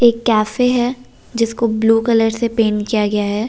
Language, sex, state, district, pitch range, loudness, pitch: Hindi, female, Delhi, New Delhi, 215-235 Hz, -16 LUFS, 225 Hz